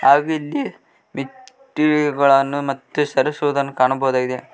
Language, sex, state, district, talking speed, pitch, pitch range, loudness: Kannada, male, Karnataka, Koppal, 80 wpm, 140 Hz, 135-150 Hz, -18 LUFS